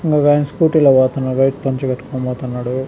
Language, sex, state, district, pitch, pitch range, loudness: Telugu, male, Andhra Pradesh, Chittoor, 135 Hz, 130-145 Hz, -16 LUFS